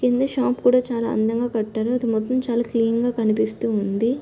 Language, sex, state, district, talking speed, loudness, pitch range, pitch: Telugu, female, Andhra Pradesh, Chittoor, 200 wpm, -21 LUFS, 220-250 Hz, 235 Hz